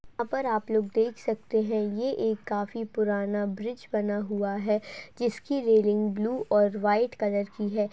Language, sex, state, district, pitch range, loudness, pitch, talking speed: Hindi, female, Uttarakhand, Uttarkashi, 205-225 Hz, -28 LUFS, 215 Hz, 175 wpm